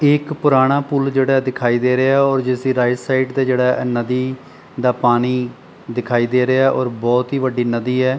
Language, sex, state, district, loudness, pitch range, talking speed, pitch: Punjabi, male, Punjab, Pathankot, -17 LUFS, 125-135 Hz, 190 wpm, 130 Hz